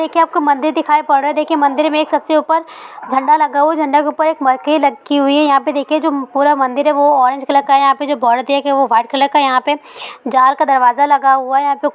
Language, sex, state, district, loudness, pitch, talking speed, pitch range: Hindi, female, Bihar, Sitamarhi, -13 LUFS, 285 Hz, 285 wpm, 275-305 Hz